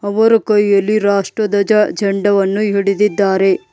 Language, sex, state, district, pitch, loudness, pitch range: Kannada, male, Karnataka, Bidar, 205 Hz, -14 LUFS, 200-210 Hz